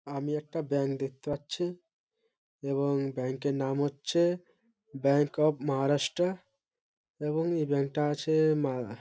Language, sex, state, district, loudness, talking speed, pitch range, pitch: Bengali, male, West Bengal, Malda, -30 LUFS, 135 wpm, 140-165 Hz, 145 Hz